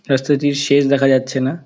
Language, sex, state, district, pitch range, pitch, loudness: Bengali, male, West Bengal, Dakshin Dinajpur, 130-140 Hz, 140 Hz, -16 LUFS